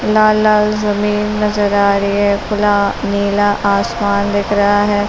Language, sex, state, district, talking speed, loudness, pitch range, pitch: Hindi, female, Uttar Pradesh, Muzaffarnagar, 140 wpm, -14 LUFS, 200-210 Hz, 205 Hz